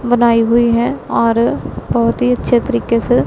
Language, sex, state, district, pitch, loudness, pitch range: Hindi, female, Punjab, Pathankot, 235 Hz, -14 LUFS, 230-245 Hz